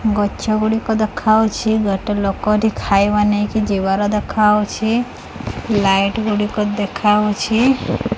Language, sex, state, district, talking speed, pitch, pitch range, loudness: Odia, female, Odisha, Khordha, 95 wpm, 210 Hz, 205-220 Hz, -17 LUFS